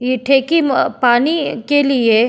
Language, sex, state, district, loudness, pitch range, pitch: Hindi, female, Uttarakhand, Tehri Garhwal, -14 LUFS, 245-290 Hz, 270 Hz